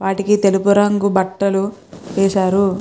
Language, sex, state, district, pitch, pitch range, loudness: Telugu, female, Andhra Pradesh, Guntur, 195 Hz, 195-200 Hz, -16 LUFS